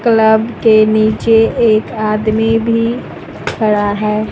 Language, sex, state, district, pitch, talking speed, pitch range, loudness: Hindi, female, Uttar Pradesh, Lucknow, 220 Hz, 110 wpm, 215-225 Hz, -12 LUFS